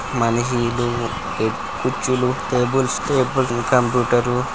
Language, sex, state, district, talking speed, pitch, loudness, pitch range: Telugu, male, Andhra Pradesh, Guntur, 80 wpm, 125 Hz, -20 LUFS, 120-130 Hz